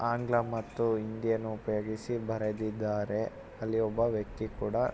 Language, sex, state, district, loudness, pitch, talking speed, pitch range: Kannada, male, Karnataka, Mysore, -33 LUFS, 110 Hz, 110 wpm, 110-115 Hz